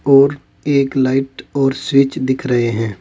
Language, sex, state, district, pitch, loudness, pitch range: Hindi, male, Uttar Pradesh, Saharanpur, 135 Hz, -16 LUFS, 130-140 Hz